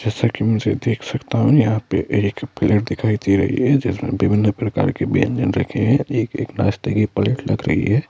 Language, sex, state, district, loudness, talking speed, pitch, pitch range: Hindi, male, Madhya Pradesh, Bhopal, -19 LUFS, 215 wpm, 110 Hz, 105-120 Hz